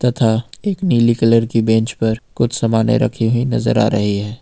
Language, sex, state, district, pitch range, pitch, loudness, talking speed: Hindi, male, Jharkhand, Ranchi, 110-120 Hz, 115 Hz, -16 LUFS, 205 wpm